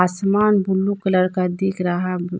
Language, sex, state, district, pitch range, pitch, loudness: Hindi, female, Jharkhand, Deoghar, 180-195 Hz, 185 Hz, -19 LUFS